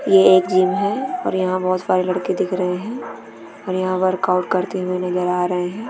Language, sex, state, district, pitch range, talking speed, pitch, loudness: Hindi, female, Chhattisgarh, Bilaspur, 180-190 Hz, 225 wpm, 185 Hz, -19 LUFS